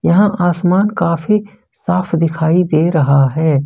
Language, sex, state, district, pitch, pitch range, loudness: Hindi, male, Jharkhand, Ranchi, 170 Hz, 160-185 Hz, -14 LUFS